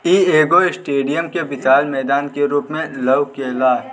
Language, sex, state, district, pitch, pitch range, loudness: Bhojpuri, male, Bihar, Gopalganj, 140 Hz, 135-155 Hz, -17 LUFS